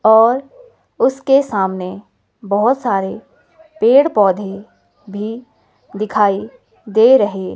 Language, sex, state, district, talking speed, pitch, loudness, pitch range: Hindi, female, Himachal Pradesh, Shimla, 95 wpm, 220 Hz, -15 LUFS, 200-270 Hz